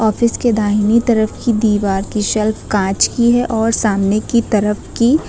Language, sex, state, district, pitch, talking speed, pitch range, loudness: Hindi, female, Uttar Pradesh, Lucknow, 220 Hz, 170 wpm, 210-235 Hz, -15 LUFS